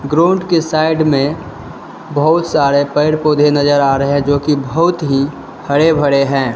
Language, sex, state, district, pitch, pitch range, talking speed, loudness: Hindi, male, Uttar Pradesh, Lalitpur, 145 Hz, 140-160 Hz, 175 wpm, -13 LUFS